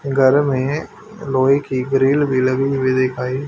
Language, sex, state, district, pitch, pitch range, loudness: Hindi, male, Haryana, Charkhi Dadri, 135 Hz, 130-140 Hz, -17 LUFS